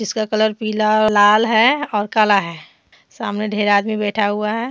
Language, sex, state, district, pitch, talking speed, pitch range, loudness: Hindi, female, Jharkhand, Deoghar, 215 Hz, 180 wpm, 205-220 Hz, -16 LUFS